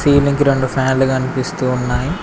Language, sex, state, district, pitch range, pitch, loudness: Telugu, male, Telangana, Mahabubabad, 130-140 Hz, 130 Hz, -16 LUFS